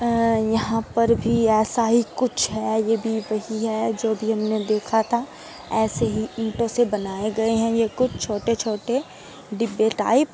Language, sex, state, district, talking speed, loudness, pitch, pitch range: Hindi, female, Uttar Pradesh, Hamirpur, 175 wpm, -22 LUFS, 225 Hz, 220-230 Hz